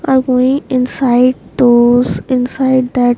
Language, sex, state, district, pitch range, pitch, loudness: English, female, Maharashtra, Mumbai Suburban, 245-260 Hz, 255 Hz, -12 LUFS